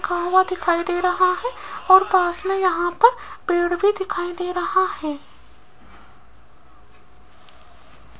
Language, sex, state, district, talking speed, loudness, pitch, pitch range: Hindi, female, Rajasthan, Jaipur, 110 wpm, -20 LUFS, 365 Hz, 350-385 Hz